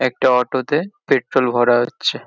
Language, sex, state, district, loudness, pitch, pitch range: Bengali, male, West Bengal, Kolkata, -17 LUFS, 130 Hz, 125-150 Hz